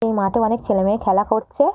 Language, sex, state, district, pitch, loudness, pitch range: Bengali, female, West Bengal, Jhargram, 220 Hz, -19 LUFS, 200-225 Hz